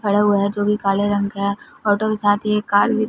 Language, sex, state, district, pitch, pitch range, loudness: Hindi, female, Punjab, Fazilka, 205 Hz, 200-210 Hz, -19 LUFS